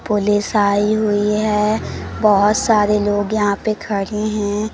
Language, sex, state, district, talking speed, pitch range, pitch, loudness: Hindi, female, Madhya Pradesh, Umaria, 140 wpm, 205-215 Hz, 210 Hz, -17 LUFS